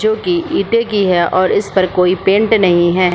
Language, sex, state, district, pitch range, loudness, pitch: Hindi, female, Bihar, Supaul, 180-210 Hz, -13 LUFS, 185 Hz